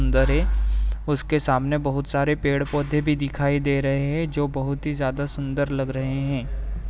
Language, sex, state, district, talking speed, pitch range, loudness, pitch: Hindi, male, Andhra Pradesh, Guntur, 185 wpm, 135-145 Hz, -24 LUFS, 140 Hz